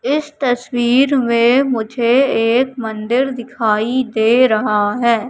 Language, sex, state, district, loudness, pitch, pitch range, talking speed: Hindi, female, Madhya Pradesh, Katni, -15 LUFS, 240 Hz, 225-260 Hz, 115 wpm